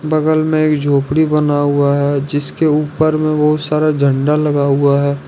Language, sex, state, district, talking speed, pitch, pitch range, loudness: Hindi, male, Jharkhand, Ranchi, 180 wpm, 150 Hz, 140-155 Hz, -14 LUFS